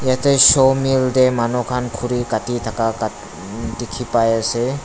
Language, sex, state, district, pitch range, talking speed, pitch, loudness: Nagamese, male, Nagaland, Dimapur, 115-130 Hz, 160 wpm, 120 Hz, -17 LUFS